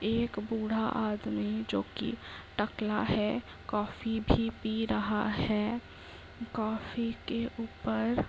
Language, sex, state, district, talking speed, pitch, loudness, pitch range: Hindi, female, Uttar Pradesh, Muzaffarnagar, 115 wpm, 220 Hz, -33 LUFS, 210-230 Hz